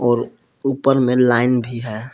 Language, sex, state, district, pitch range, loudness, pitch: Hindi, male, Jharkhand, Palamu, 120-130 Hz, -18 LUFS, 125 Hz